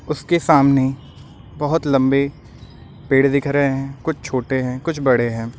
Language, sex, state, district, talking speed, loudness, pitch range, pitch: Hindi, male, Uttar Pradesh, Lucknow, 150 wpm, -18 LUFS, 130-145 Hz, 135 Hz